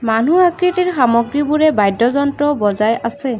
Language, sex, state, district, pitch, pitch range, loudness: Assamese, female, Assam, Kamrup Metropolitan, 270 Hz, 230-305 Hz, -15 LUFS